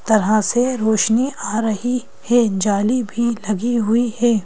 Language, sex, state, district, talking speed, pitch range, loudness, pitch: Hindi, female, Madhya Pradesh, Bhopal, 150 wpm, 215-240 Hz, -18 LUFS, 225 Hz